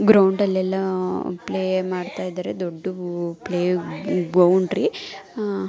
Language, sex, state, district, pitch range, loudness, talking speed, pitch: Kannada, female, Karnataka, Mysore, 180-190 Hz, -22 LUFS, 95 wpm, 185 Hz